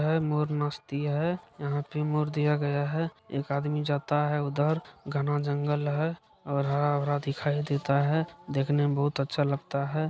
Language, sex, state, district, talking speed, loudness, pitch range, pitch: Maithili, male, Bihar, Supaul, 180 wpm, -29 LUFS, 140-150 Hz, 145 Hz